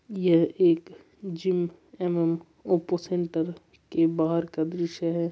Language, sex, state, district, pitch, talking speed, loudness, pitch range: Marwari, male, Rajasthan, Churu, 170 Hz, 125 wpm, -26 LUFS, 165-180 Hz